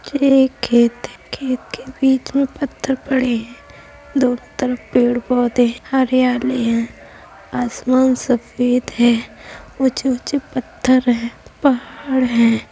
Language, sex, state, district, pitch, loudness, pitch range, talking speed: Hindi, female, Uttar Pradesh, Budaun, 255 Hz, -17 LUFS, 245-265 Hz, 120 wpm